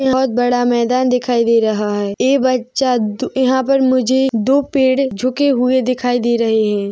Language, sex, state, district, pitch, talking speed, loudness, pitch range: Hindi, female, Chhattisgarh, Rajnandgaon, 255 Hz, 180 wpm, -15 LUFS, 235-260 Hz